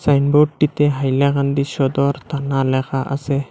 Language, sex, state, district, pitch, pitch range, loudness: Bengali, male, Assam, Hailakandi, 140 Hz, 135-145 Hz, -18 LUFS